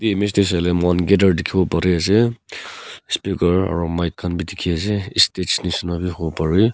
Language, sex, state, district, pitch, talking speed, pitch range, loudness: Nagamese, male, Nagaland, Kohima, 90 Hz, 180 wpm, 85-100 Hz, -19 LUFS